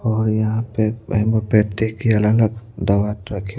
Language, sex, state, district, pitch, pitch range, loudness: Hindi, male, Madhya Pradesh, Bhopal, 110 Hz, 105-110 Hz, -19 LUFS